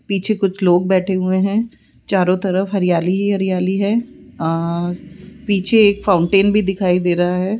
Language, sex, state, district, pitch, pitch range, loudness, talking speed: Hindi, female, Rajasthan, Jaipur, 190 Hz, 180-200 Hz, -17 LUFS, 165 wpm